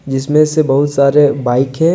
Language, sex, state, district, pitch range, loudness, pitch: Hindi, male, Jharkhand, Deoghar, 135-155 Hz, -12 LUFS, 140 Hz